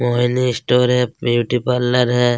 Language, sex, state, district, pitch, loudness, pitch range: Hindi, male, Chhattisgarh, Kabirdham, 125 Hz, -17 LUFS, 120-125 Hz